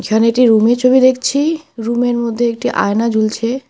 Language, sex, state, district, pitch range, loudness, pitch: Bengali, female, West Bengal, Alipurduar, 230-255 Hz, -14 LUFS, 235 Hz